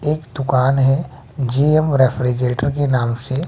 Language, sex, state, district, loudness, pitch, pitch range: Hindi, male, Bihar, West Champaran, -17 LUFS, 135 Hz, 125-145 Hz